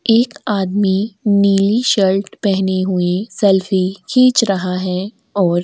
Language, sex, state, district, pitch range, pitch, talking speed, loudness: Hindi, female, Chhattisgarh, Korba, 190-215 Hz, 195 Hz, 130 wpm, -16 LUFS